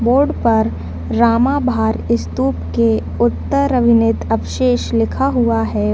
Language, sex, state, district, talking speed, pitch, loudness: Hindi, female, Uttar Pradesh, Deoria, 120 wpm, 230 Hz, -16 LUFS